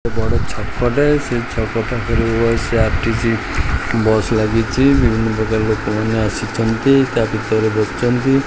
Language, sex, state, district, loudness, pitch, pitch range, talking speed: Odia, male, Odisha, Khordha, -17 LUFS, 115 Hz, 110-120 Hz, 135 wpm